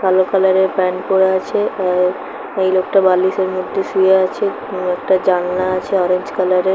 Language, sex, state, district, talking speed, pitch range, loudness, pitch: Bengali, female, West Bengal, Paschim Medinipur, 195 wpm, 185-190 Hz, -16 LUFS, 185 Hz